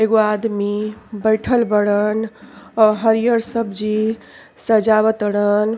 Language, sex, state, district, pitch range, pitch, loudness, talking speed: Bhojpuri, female, Uttar Pradesh, Ghazipur, 210-225 Hz, 220 Hz, -17 LUFS, 95 wpm